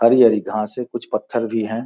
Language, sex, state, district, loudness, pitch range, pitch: Hindi, male, Bihar, Gopalganj, -20 LUFS, 110-120 Hz, 115 Hz